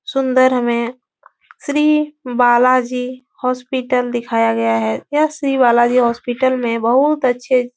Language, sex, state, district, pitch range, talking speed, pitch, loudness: Hindi, female, Uttar Pradesh, Etah, 240-265 Hz, 140 wpm, 250 Hz, -16 LUFS